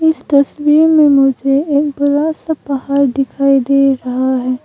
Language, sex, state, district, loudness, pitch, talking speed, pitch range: Hindi, female, Arunachal Pradesh, Longding, -13 LUFS, 280 Hz, 155 wpm, 270-295 Hz